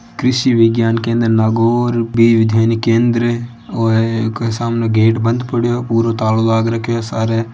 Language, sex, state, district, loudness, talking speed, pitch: Marwari, male, Rajasthan, Nagaur, -15 LUFS, 145 wpm, 115 Hz